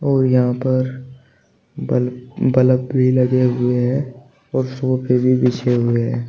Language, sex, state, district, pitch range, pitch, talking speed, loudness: Hindi, male, Uttar Pradesh, Shamli, 125-130 Hz, 130 Hz, 145 wpm, -18 LUFS